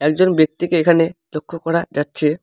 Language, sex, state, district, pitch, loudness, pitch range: Bengali, male, West Bengal, Alipurduar, 165 Hz, -17 LUFS, 155-170 Hz